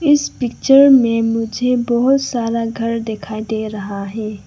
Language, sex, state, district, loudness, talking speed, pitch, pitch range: Hindi, female, Arunachal Pradesh, Lower Dibang Valley, -16 LUFS, 145 wpm, 230 Hz, 220-250 Hz